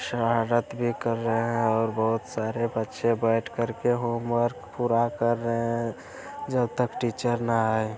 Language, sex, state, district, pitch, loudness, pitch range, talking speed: Hindi, male, Bihar, Araria, 115 Hz, -26 LUFS, 115-120 Hz, 165 wpm